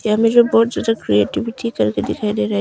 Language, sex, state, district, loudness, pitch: Hindi, female, Arunachal Pradesh, Longding, -17 LUFS, 215 Hz